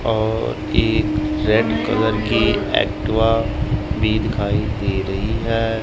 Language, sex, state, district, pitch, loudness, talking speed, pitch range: Hindi, male, Punjab, Kapurthala, 105 Hz, -19 LUFS, 115 wpm, 100-110 Hz